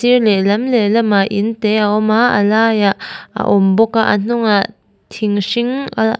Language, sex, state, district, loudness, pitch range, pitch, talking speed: Mizo, female, Mizoram, Aizawl, -14 LUFS, 205-230 Hz, 215 Hz, 205 wpm